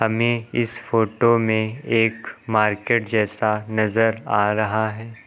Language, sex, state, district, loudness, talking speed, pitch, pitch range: Hindi, male, Uttar Pradesh, Lucknow, -21 LUFS, 125 wpm, 110 Hz, 110-115 Hz